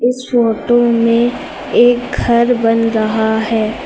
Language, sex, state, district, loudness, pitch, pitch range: Hindi, female, Uttar Pradesh, Lucknow, -13 LUFS, 235 Hz, 225-245 Hz